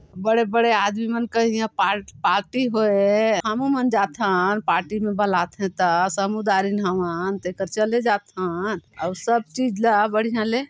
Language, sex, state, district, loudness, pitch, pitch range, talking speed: Chhattisgarhi, female, Chhattisgarh, Sarguja, -21 LUFS, 210 Hz, 195-225 Hz, 150 wpm